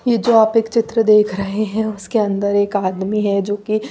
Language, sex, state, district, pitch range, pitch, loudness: Hindi, female, Bihar, Patna, 200-220 Hz, 210 Hz, -17 LUFS